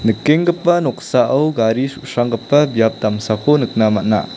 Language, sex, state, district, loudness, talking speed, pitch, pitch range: Garo, male, Meghalaya, South Garo Hills, -16 LUFS, 110 wpm, 120 Hz, 110-150 Hz